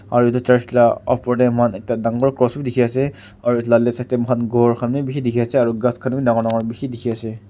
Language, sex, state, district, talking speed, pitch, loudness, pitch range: Nagamese, male, Nagaland, Kohima, 295 wpm, 120 Hz, -18 LUFS, 115-125 Hz